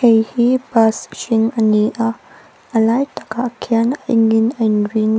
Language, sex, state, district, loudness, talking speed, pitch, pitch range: Mizo, female, Mizoram, Aizawl, -16 LUFS, 195 wpm, 225 Hz, 220-240 Hz